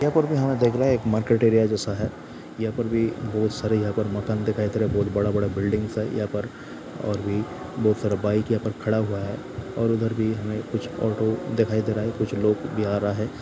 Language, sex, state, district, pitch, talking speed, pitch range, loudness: Hindi, male, Bihar, Saran, 110 Hz, 230 wpm, 105-115 Hz, -24 LUFS